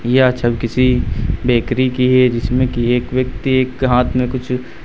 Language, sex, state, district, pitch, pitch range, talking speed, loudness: Hindi, male, Uttar Pradesh, Lucknow, 125 Hz, 120-130 Hz, 175 wpm, -16 LUFS